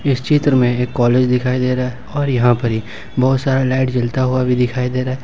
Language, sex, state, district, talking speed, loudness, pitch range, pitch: Hindi, male, Jharkhand, Ranchi, 265 wpm, -16 LUFS, 125-130 Hz, 125 Hz